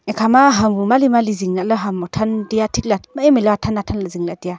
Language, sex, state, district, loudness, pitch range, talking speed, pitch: Wancho, female, Arunachal Pradesh, Longding, -16 LUFS, 190-225 Hz, 275 wpm, 210 Hz